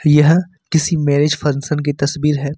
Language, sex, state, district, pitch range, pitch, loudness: Hindi, male, Jharkhand, Ranchi, 145-160 Hz, 150 Hz, -16 LUFS